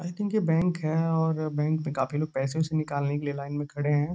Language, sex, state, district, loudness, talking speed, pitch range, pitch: Hindi, male, Uttar Pradesh, Gorakhpur, -28 LUFS, 275 wpm, 145-165 Hz, 155 Hz